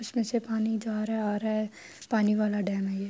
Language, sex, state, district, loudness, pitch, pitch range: Urdu, female, Andhra Pradesh, Anantapur, -29 LUFS, 215 Hz, 210-220 Hz